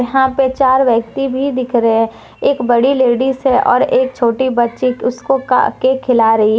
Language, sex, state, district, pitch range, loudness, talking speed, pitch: Hindi, female, Jharkhand, Deoghar, 240-265 Hz, -14 LUFS, 200 wpm, 255 Hz